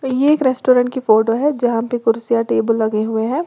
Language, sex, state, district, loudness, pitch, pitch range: Hindi, female, Uttar Pradesh, Lalitpur, -16 LUFS, 235 Hz, 225-260 Hz